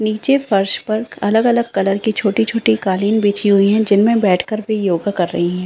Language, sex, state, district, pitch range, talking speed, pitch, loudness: Hindi, female, Uttarakhand, Uttarkashi, 195-225 Hz, 200 wpm, 210 Hz, -16 LUFS